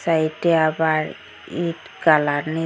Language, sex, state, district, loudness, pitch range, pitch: Bengali, female, Assam, Hailakandi, -20 LUFS, 155-165 Hz, 160 Hz